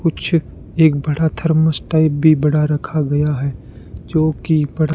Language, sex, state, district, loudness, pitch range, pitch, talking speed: Hindi, male, Rajasthan, Bikaner, -16 LUFS, 145-160 Hz, 155 Hz, 145 wpm